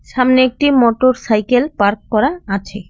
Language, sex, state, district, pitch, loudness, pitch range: Bengali, female, West Bengal, Cooch Behar, 245 Hz, -14 LUFS, 210-255 Hz